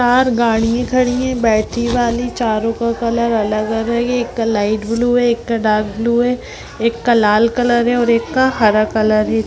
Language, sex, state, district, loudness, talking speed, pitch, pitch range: Hindi, female, Bihar, Jamui, -15 LUFS, 190 wpm, 235 Hz, 220-245 Hz